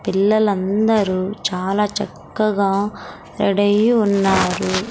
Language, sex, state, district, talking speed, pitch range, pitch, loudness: Telugu, female, Andhra Pradesh, Sri Satya Sai, 60 wpm, 190-210 Hz, 200 Hz, -18 LUFS